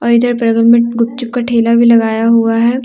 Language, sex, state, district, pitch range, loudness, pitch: Hindi, female, Jharkhand, Deoghar, 230-235 Hz, -11 LUFS, 235 Hz